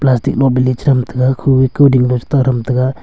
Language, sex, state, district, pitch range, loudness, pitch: Wancho, male, Arunachal Pradesh, Longding, 125-135 Hz, -13 LUFS, 130 Hz